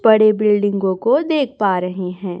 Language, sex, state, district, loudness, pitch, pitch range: Hindi, female, Chhattisgarh, Raipur, -17 LUFS, 205 Hz, 185-220 Hz